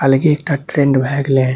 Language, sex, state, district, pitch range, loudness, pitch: Maithili, male, Bihar, Saharsa, 135-145 Hz, -15 LUFS, 140 Hz